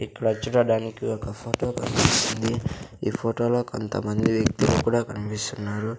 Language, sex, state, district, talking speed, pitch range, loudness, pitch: Telugu, male, Andhra Pradesh, Sri Satya Sai, 110 wpm, 105-120 Hz, -25 LUFS, 110 Hz